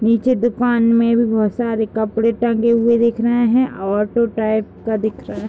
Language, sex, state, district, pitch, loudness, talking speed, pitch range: Hindi, female, Uttar Pradesh, Deoria, 230 Hz, -17 LUFS, 195 wpm, 220-235 Hz